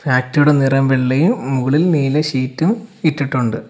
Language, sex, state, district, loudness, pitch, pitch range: Malayalam, male, Kerala, Kollam, -16 LUFS, 140 Hz, 130-155 Hz